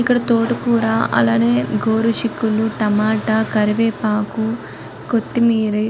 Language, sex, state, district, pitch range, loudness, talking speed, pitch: Telugu, female, Telangana, Karimnagar, 210-230 Hz, -17 LUFS, 80 wpm, 220 Hz